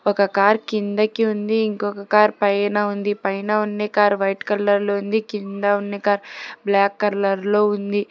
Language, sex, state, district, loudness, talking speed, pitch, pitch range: Telugu, female, Telangana, Hyderabad, -20 LUFS, 155 wpm, 205 Hz, 200-210 Hz